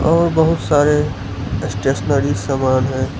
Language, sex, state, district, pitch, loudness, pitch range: Hindi, male, Gujarat, Valsad, 135 Hz, -17 LUFS, 105-150 Hz